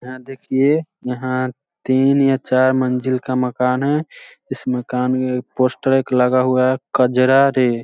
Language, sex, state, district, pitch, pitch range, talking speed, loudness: Hindi, male, Bihar, Sitamarhi, 130 Hz, 125-135 Hz, 155 wpm, -17 LUFS